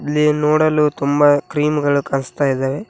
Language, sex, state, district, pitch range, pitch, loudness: Kannada, male, Karnataka, Koppal, 140-150 Hz, 145 Hz, -16 LUFS